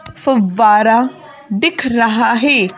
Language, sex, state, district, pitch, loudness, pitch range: Hindi, female, Madhya Pradesh, Bhopal, 230 Hz, -13 LUFS, 215-280 Hz